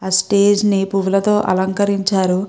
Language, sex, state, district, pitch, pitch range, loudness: Telugu, female, Andhra Pradesh, Guntur, 195 Hz, 190-200 Hz, -16 LUFS